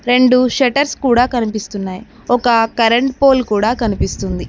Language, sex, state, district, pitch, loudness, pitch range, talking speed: Telugu, female, Telangana, Mahabubabad, 240 Hz, -14 LUFS, 225-255 Hz, 120 wpm